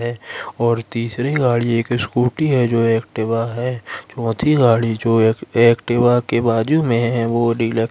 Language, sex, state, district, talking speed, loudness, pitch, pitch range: Hindi, male, Madhya Pradesh, Katni, 165 wpm, -17 LUFS, 115 Hz, 115-120 Hz